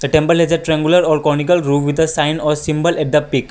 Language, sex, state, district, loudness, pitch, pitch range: English, male, Assam, Kamrup Metropolitan, -15 LUFS, 155 Hz, 150-160 Hz